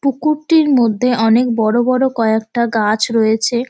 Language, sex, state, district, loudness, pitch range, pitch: Bengali, female, West Bengal, Dakshin Dinajpur, -14 LUFS, 225-260 Hz, 235 Hz